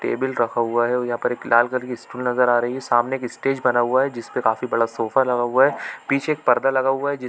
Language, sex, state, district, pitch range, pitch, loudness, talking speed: Hindi, male, Chhattisgarh, Bilaspur, 120-130 Hz, 125 Hz, -21 LUFS, 295 wpm